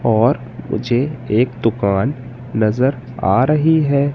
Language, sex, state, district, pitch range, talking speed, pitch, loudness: Hindi, male, Madhya Pradesh, Katni, 115-135 Hz, 115 wpm, 125 Hz, -17 LUFS